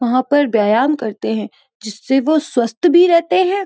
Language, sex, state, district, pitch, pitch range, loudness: Hindi, female, Uttarakhand, Uttarkashi, 265 Hz, 220-310 Hz, -15 LUFS